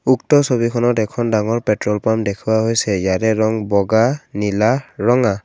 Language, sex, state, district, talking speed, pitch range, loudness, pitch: Assamese, male, Assam, Kamrup Metropolitan, 145 wpm, 105-120 Hz, -17 LUFS, 110 Hz